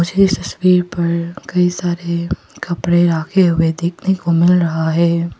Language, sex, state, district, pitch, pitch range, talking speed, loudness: Hindi, female, Arunachal Pradesh, Papum Pare, 175 Hz, 170-180 Hz, 155 wpm, -16 LUFS